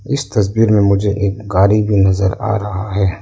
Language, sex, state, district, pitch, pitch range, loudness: Hindi, male, Arunachal Pradesh, Lower Dibang Valley, 105 Hz, 100-105 Hz, -15 LUFS